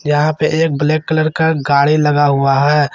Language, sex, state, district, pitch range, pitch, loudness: Hindi, male, Jharkhand, Garhwa, 145-155 Hz, 150 Hz, -14 LUFS